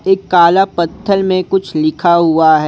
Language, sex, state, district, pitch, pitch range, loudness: Hindi, male, Jharkhand, Ranchi, 185 Hz, 170-195 Hz, -12 LUFS